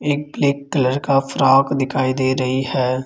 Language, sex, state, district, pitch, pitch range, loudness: Hindi, male, Rajasthan, Jaipur, 135 Hz, 130-140 Hz, -18 LUFS